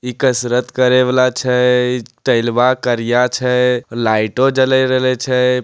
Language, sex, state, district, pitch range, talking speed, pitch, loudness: Angika, male, Bihar, Begusarai, 120-130 Hz, 115 wpm, 125 Hz, -15 LUFS